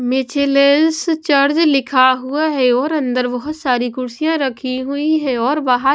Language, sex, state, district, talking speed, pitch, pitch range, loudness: Hindi, female, Maharashtra, Washim, 150 wpm, 275 Hz, 255-305 Hz, -16 LUFS